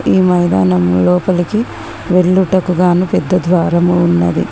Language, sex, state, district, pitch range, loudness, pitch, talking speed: Telugu, female, Telangana, Komaram Bheem, 110-185 Hz, -12 LUFS, 175 Hz, 105 wpm